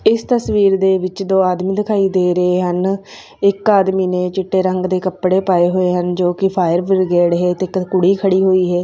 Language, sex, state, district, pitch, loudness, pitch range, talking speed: Punjabi, female, Punjab, Fazilka, 185 Hz, -15 LUFS, 180-195 Hz, 210 wpm